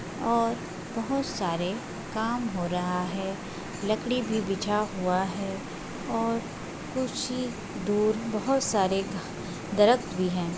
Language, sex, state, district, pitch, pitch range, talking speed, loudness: Hindi, female, Bihar, Begusarai, 205 Hz, 185-230 Hz, 120 wpm, -29 LUFS